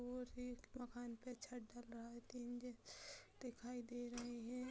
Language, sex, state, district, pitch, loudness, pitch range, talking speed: Hindi, female, Uttar Pradesh, Budaun, 245 Hz, -52 LUFS, 240-250 Hz, 180 wpm